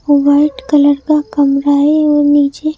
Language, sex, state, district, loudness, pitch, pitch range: Hindi, female, Madhya Pradesh, Bhopal, -11 LUFS, 290 Hz, 285-300 Hz